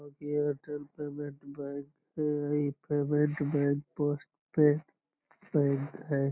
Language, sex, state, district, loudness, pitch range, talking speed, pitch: Magahi, male, Bihar, Lakhisarai, -32 LUFS, 145-150 Hz, 105 wpm, 145 Hz